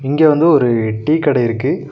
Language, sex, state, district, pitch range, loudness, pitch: Tamil, male, Tamil Nadu, Nilgiris, 120-155 Hz, -14 LUFS, 140 Hz